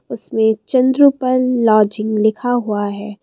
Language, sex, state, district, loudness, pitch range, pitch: Hindi, female, Assam, Kamrup Metropolitan, -15 LUFS, 215-255 Hz, 220 Hz